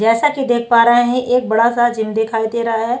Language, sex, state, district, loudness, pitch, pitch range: Hindi, female, Chhattisgarh, Bastar, -15 LUFS, 235 Hz, 225-240 Hz